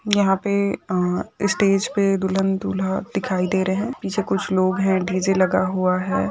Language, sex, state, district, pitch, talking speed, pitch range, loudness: Hindi, female, Maharashtra, Nagpur, 190 Hz, 170 wpm, 185-200 Hz, -21 LUFS